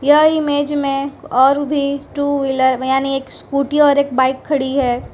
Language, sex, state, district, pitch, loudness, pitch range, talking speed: Hindi, female, Gujarat, Valsad, 280 Hz, -16 LUFS, 265-285 Hz, 175 wpm